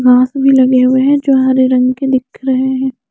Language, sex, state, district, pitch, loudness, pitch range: Hindi, female, Chandigarh, Chandigarh, 260 Hz, -11 LUFS, 255-265 Hz